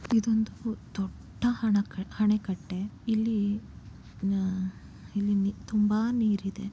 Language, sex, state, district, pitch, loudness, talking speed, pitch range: Kannada, female, Karnataka, Chamarajanagar, 205 Hz, -29 LUFS, 80 wpm, 195-220 Hz